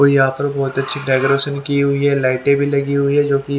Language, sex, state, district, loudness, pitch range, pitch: Hindi, male, Haryana, Jhajjar, -16 LUFS, 135-140 Hz, 140 Hz